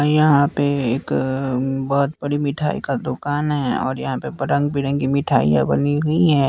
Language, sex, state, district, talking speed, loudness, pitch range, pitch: Hindi, male, Bihar, West Champaran, 165 wpm, -20 LUFS, 135-145 Hz, 140 Hz